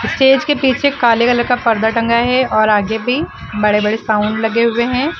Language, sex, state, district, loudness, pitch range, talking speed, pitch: Hindi, female, Uttar Pradesh, Lucknow, -14 LUFS, 220-255 Hz, 210 wpm, 235 Hz